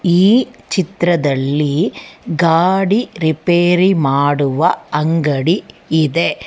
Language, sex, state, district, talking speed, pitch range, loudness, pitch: Kannada, female, Karnataka, Bangalore, 65 wpm, 150-180 Hz, -15 LUFS, 165 Hz